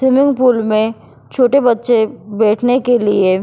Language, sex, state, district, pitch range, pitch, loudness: Hindi, female, Goa, North and South Goa, 215-250 Hz, 235 Hz, -14 LUFS